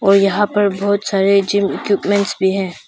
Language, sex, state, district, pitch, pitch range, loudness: Hindi, female, Arunachal Pradesh, Papum Pare, 200 Hz, 195-200 Hz, -16 LUFS